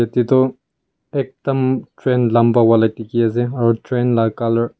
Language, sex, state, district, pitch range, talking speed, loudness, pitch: Nagamese, male, Nagaland, Kohima, 115-130 Hz, 150 wpm, -17 LUFS, 120 Hz